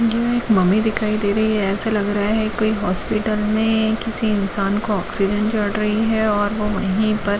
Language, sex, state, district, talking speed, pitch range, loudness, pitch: Hindi, female, Jharkhand, Jamtara, 200 wpm, 205-220 Hz, -19 LUFS, 215 Hz